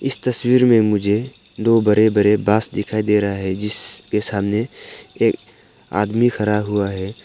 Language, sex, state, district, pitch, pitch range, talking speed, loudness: Hindi, male, Arunachal Pradesh, Papum Pare, 105 Hz, 105-115 Hz, 155 wpm, -18 LUFS